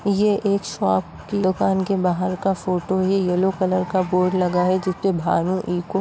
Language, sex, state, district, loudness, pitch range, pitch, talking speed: Hindi, female, Uttar Pradesh, Etah, -21 LUFS, 180-195 Hz, 185 Hz, 180 wpm